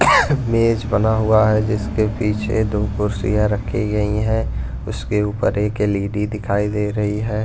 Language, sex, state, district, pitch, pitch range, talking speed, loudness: Hindi, male, Punjab, Pathankot, 105 Hz, 105-110 Hz, 155 wpm, -19 LUFS